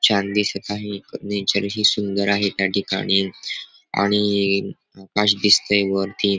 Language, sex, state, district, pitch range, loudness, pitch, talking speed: Marathi, male, Maharashtra, Dhule, 100-105 Hz, -20 LUFS, 100 Hz, 115 wpm